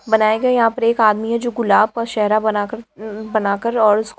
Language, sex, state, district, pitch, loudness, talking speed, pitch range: Hindi, female, Bihar, Jamui, 220 Hz, -17 LUFS, 255 wpm, 215-230 Hz